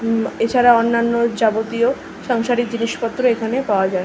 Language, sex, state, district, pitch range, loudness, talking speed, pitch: Bengali, female, West Bengal, North 24 Parganas, 225-245 Hz, -18 LUFS, 105 wpm, 235 Hz